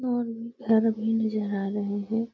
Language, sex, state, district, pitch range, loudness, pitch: Hindi, female, Bihar, Gaya, 205-230 Hz, -27 LUFS, 225 Hz